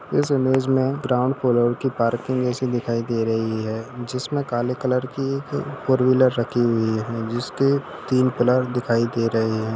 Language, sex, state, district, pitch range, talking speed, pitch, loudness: Hindi, male, Bihar, Sitamarhi, 115-130 Hz, 170 wpm, 125 Hz, -22 LUFS